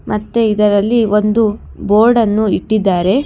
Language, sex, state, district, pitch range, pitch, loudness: Kannada, female, Karnataka, Bangalore, 210-225 Hz, 215 Hz, -13 LUFS